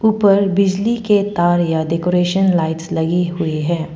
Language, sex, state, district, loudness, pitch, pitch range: Hindi, female, Arunachal Pradesh, Papum Pare, -16 LUFS, 175 Hz, 165-200 Hz